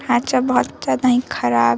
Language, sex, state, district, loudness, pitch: Hindi, female, Bihar, Vaishali, -18 LUFS, 245 Hz